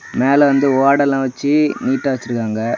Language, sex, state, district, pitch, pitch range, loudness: Tamil, male, Tamil Nadu, Kanyakumari, 135 Hz, 130-140 Hz, -15 LUFS